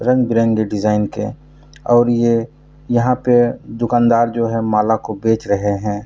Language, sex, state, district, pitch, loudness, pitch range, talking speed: Hindi, male, Bihar, Purnia, 115 Hz, -16 LUFS, 110-120 Hz, 160 wpm